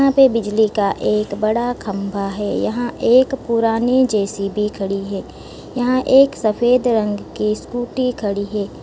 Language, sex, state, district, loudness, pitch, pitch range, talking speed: Hindi, female, Gujarat, Valsad, -18 LUFS, 220 Hz, 205-245 Hz, 145 wpm